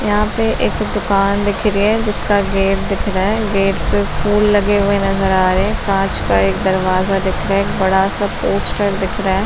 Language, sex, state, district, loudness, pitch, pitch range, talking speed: Hindi, female, Bihar, Madhepura, -16 LUFS, 195 Hz, 190-205 Hz, 220 wpm